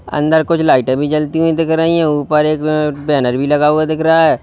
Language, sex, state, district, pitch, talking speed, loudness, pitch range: Hindi, male, Uttar Pradesh, Lalitpur, 155 Hz, 245 wpm, -13 LUFS, 150-160 Hz